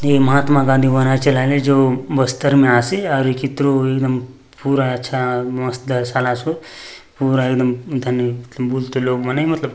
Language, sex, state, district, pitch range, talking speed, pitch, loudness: Halbi, male, Chhattisgarh, Bastar, 125-140 Hz, 135 wpm, 130 Hz, -17 LUFS